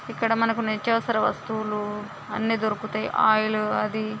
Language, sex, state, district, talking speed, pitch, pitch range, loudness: Telugu, female, Telangana, Nalgonda, 130 wpm, 215 Hz, 215-225 Hz, -25 LUFS